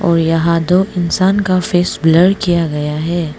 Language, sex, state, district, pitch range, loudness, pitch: Hindi, female, Arunachal Pradesh, Lower Dibang Valley, 165-180 Hz, -14 LUFS, 170 Hz